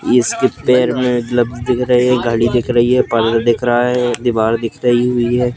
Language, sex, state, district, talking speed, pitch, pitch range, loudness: Hindi, male, Madhya Pradesh, Katni, 205 wpm, 120 Hz, 120-125 Hz, -14 LUFS